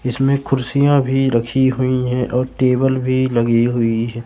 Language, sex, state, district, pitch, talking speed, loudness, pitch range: Hindi, male, Madhya Pradesh, Katni, 130 Hz, 170 wpm, -17 LUFS, 120-135 Hz